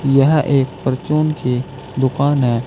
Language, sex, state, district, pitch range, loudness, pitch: Hindi, male, Uttar Pradesh, Saharanpur, 130-145 Hz, -17 LUFS, 135 Hz